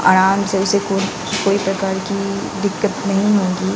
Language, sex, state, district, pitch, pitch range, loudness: Hindi, female, Bihar, West Champaran, 195 Hz, 190-200 Hz, -18 LUFS